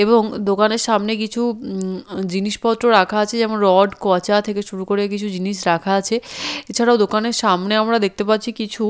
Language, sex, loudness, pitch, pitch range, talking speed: Bengali, female, -18 LUFS, 210 Hz, 195-225 Hz, 175 wpm